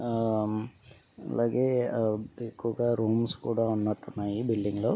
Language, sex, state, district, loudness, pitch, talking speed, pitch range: Telugu, male, Andhra Pradesh, Guntur, -29 LUFS, 115 Hz, 85 wpm, 110-120 Hz